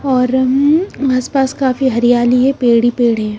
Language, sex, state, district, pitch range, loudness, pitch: Hindi, female, Punjab, Kapurthala, 240-270 Hz, -13 LUFS, 255 Hz